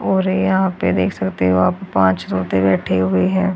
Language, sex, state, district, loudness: Hindi, female, Haryana, Charkhi Dadri, -17 LUFS